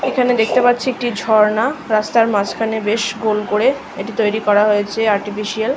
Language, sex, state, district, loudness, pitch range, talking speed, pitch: Bengali, female, West Bengal, North 24 Parganas, -16 LUFS, 210-240 Hz, 155 wpm, 220 Hz